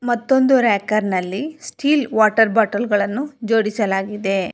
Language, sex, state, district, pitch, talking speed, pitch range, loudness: Kannada, female, Karnataka, Bangalore, 220 Hz, 105 wpm, 205-260 Hz, -18 LUFS